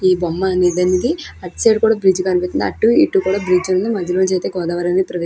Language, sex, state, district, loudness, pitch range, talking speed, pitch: Telugu, female, Andhra Pradesh, Krishna, -16 LUFS, 180-190 Hz, 205 wpm, 185 Hz